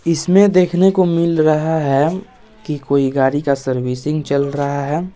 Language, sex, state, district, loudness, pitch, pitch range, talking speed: Hindi, male, Bihar, West Champaran, -16 LUFS, 155 Hz, 140-175 Hz, 160 wpm